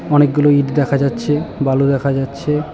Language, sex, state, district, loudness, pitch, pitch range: Bengali, male, West Bengal, Cooch Behar, -16 LUFS, 140 Hz, 140-145 Hz